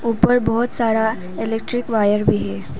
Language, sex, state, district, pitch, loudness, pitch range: Hindi, female, Arunachal Pradesh, Papum Pare, 225 Hz, -19 LUFS, 210-235 Hz